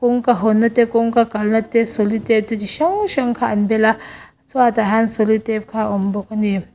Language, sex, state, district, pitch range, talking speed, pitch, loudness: Mizo, female, Mizoram, Aizawl, 215-235 Hz, 220 wpm, 225 Hz, -17 LUFS